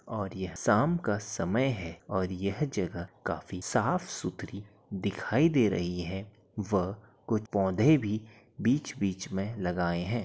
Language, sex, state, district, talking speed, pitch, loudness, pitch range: Hindi, male, Uttar Pradesh, Gorakhpur, 145 wpm, 100 Hz, -30 LUFS, 95-110 Hz